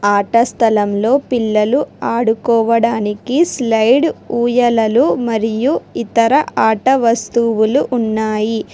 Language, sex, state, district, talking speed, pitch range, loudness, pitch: Telugu, female, Telangana, Hyderabad, 75 wpm, 220-250 Hz, -14 LUFS, 230 Hz